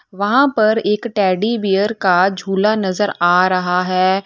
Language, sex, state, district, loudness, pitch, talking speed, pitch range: Hindi, female, Uttar Pradesh, Lalitpur, -16 LUFS, 195 Hz, 155 wpm, 185-215 Hz